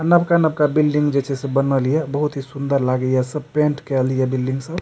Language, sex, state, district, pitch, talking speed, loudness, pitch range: Maithili, male, Bihar, Supaul, 140 Hz, 235 wpm, -19 LUFS, 135-150 Hz